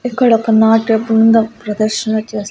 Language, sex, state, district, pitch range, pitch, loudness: Telugu, female, Andhra Pradesh, Annamaya, 220-225 Hz, 225 Hz, -13 LUFS